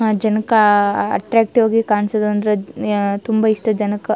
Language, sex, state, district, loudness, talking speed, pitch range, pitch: Kannada, female, Karnataka, Chamarajanagar, -16 LUFS, 130 wpm, 210-220 Hz, 215 Hz